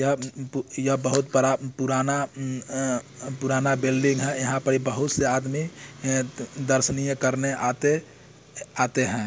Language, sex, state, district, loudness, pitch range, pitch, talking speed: Hindi, male, Bihar, Muzaffarpur, -25 LUFS, 130-140 Hz, 135 Hz, 155 wpm